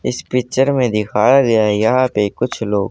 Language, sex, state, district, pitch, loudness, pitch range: Hindi, male, Haryana, Charkhi Dadri, 115 Hz, -15 LUFS, 105-130 Hz